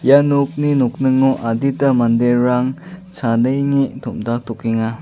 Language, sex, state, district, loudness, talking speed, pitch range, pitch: Garo, male, Meghalaya, South Garo Hills, -17 LUFS, 85 wpm, 120-140 Hz, 130 Hz